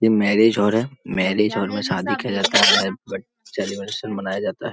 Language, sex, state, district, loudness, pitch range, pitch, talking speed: Hindi, male, Jharkhand, Jamtara, -20 LUFS, 100-110 Hz, 105 Hz, 205 wpm